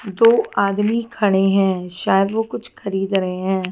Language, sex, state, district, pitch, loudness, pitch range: Hindi, female, Himachal Pradesh, Shimla, 195 Hz, -19 LUFS, 190-220 Hz